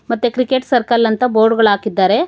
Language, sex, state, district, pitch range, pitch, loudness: Kannada, female, Karnataka, Bangalore, 220-250 Hz, 235 Hz, -14 LUFS